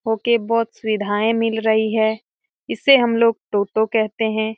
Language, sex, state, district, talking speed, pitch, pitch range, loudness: Hindi, female, Bihar, Jamui, 170 wpm, 220 Hz, 220-230 Hz, -18 LUFS